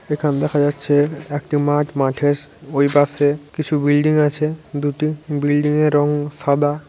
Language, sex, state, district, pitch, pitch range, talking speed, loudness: Bengali, male, West Bengal, Jhargram, 145 Hz, 145-150 Hz, 140 wpm, -18 LUFS